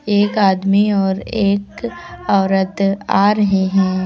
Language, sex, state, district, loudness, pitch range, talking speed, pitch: Hindi, female, Uttar Pradesh, Lucknow, -16 LUFS, 195-205 Hz, 120 wpm, 200 Hz